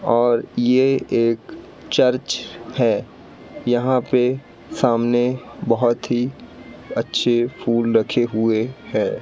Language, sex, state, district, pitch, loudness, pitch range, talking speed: Hindi, male, Madhya Pradesh, Katni, 120 Hz, -20 LUFS, 115-125 Hz, 100 wpm